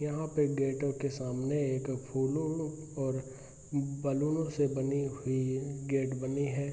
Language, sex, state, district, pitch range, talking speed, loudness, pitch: Hindi, male, Bihar, Araria, 135-145 Hz, 115 wpm, -33 LUFS, 140 Hz